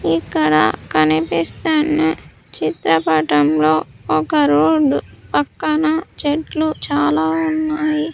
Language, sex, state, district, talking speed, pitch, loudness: Telugu, female, Andhra Pradesh, Sri Satya Sai, 65 wpm, 160 Hz, -17 LUFS